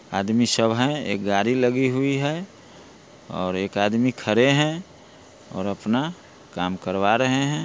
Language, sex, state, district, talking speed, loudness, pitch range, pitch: Hindi, male, Bihar, Muzaffarpur, 150 wpm, -22 LUFS, 100-135 Hz, 120 Hz